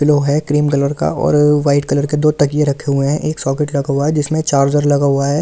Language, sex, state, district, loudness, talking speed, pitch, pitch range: Hindi, male, Delhi, New Delhi, -15 LUFS, 265 wpm, 145 Hz, 140-150 Hz